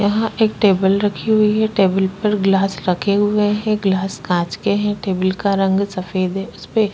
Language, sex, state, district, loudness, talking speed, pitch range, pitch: Hindi, female, Chhattisgarh, Korba, -18 LUFS, 205 wpm, 190-210 Hz, 200 Hz